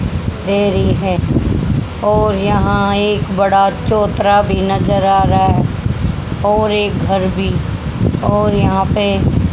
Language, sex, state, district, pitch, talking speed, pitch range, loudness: Hindi, female, Haryana, Jhajjar, 200 Hz, 115 wpm, 195-205 Hz, -14 LUFS